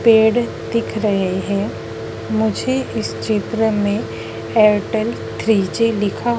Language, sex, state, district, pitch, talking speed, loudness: Hindi, female, Madhya Pradesh, Dhar, 210 Hz, 115 wpm, -19 LUFS